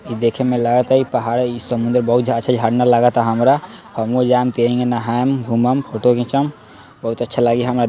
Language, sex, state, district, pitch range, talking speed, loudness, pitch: Hindi, male, Bihar, East Champaran, 120-125 Hz, 215 wpm, -17 LUFS, 120 Hz